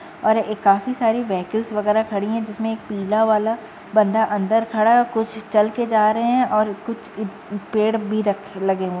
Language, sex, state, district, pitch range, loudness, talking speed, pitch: Hindi, female, Uttar Pradesh, Jyotiba Phule Nagar, 210-225 Hz, -20 LUFS, 205 wpm, 215 Hz